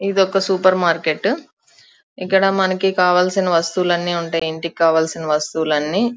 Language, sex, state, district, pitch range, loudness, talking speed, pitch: Telugu, female, Andhra Pradesh, Chittoor, 165-190 Hz, -17 LUFS, 135 wpm, 180 Hz